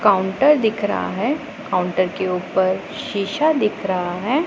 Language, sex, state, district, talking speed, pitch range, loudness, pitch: Hindi, female, Punjab, Pathankot, 145 wpm, 185-290 Hz, -20 LUFS, 200 Hz